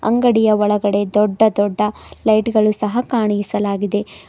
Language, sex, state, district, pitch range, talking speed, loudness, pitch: Kannada, female, Karnataka, Bidar, 205-220 Hz, 110 wpm, -17 LUFS, 210 Hz